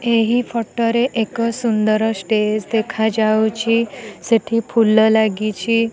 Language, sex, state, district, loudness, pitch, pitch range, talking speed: Odia, female, Odisha, Nuapada, -17 LUFS, 225 Hz, 215-230 Hz, 110 wpm